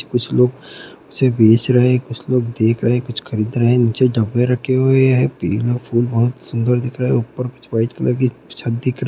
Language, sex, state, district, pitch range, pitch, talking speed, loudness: Hindi, male, Bihar, Gopalganj, 115-130 Hz, 125 Hz, 245 wpm, -17 LUFS